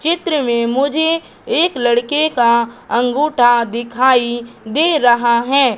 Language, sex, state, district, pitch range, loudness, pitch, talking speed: Hindi, female, Madhya Pradesh, Katni, 235-300 Hz, -15 LUFS, 245 Hz, 115 wpm